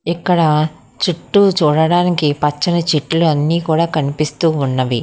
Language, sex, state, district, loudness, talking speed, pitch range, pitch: Telugu, female, Telangana, Hyderabad, -15 LUFS, 105 wpm, 150-170 Hz, 160 Hz